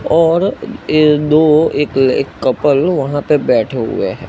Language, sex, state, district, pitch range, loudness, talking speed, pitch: Hindi, male, Gujarat, Gandhinagar, 145-155 Hz, -13 LUFS, 155 wpm, 150 Hz